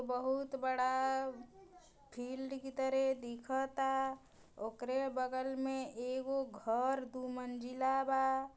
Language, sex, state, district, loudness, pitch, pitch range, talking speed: Bhojpuri, female, Uttar Pradesh, Gorakhpur, -38 LUFS, 265 Hz, 255-270 Hz, 90 wpm